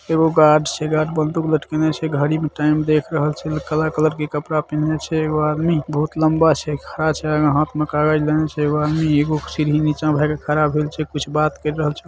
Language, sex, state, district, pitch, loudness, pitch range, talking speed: Maithili, male, Bihar, Saharsa, 155 Hz, -19 LUFS, 150-155 Hz, 240 wpm